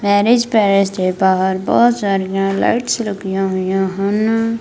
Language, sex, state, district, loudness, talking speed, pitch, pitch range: Punjabi, female, Punjab, Kapurthala, -16 LUFS, 130 wpm, 200 Hz, 190-225 Hz